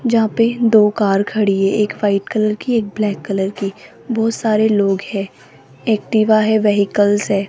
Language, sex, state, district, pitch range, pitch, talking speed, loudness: Hindi, female, Rajasthan, Jaipur, 200-220 Hz, 210 Hz, 175 wpm, -16 LUFS